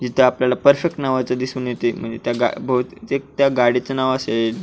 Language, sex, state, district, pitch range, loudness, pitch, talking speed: Marathi, male, Maharashtra, Pune, 120-135 Hz, -19 LUFS, 125 Hz, 155 wpm